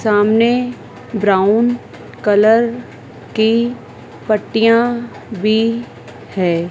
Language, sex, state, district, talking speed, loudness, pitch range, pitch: Hindi, female, Madhya Pradesh, Dhar, 65 wpm, -15 LUFS, 210-235 Hz, 225 Hz